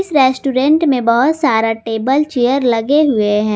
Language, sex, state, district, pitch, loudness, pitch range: Hindi, female, Jharkhand, Garhwa, 260 Hz, -14 LUFS, 225-295 Hz